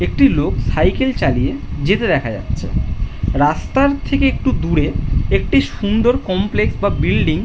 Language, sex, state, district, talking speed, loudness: Bengali, male, West Bengal, Jhargram, 135 wpm, -17 LUFS